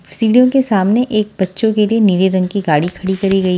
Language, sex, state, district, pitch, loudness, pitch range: Hindi, female, Haryana, Charkhi Dadri, 200 Hz, -14 LUFS, 190-220 Hz